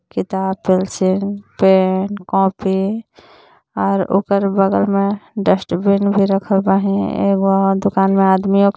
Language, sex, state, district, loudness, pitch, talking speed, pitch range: Bhojpuri, female, Jharkhand, Palamu, -16 LUFS, 195 Hz, 110 wpm, 190-200 Hz